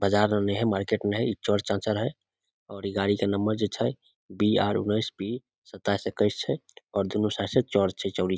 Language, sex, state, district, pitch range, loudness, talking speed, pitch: Maithili, male, Bihar, Samastipur, 100-110 Hz, -27 LUFS, 245 wpm, 105 Hz